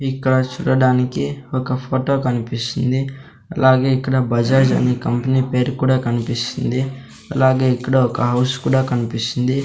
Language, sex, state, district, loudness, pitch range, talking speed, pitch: Telugu, male, Andhra Pradesh, Sri Satya Sai, -18 LUFS, 125-130 Hz, 120 wpm, 130 Hz